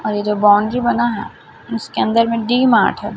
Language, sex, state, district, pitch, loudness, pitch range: Hindi, female, Chhattisgarh, Raipur, 230 Hz, -16 LUFS, 210-240 Hz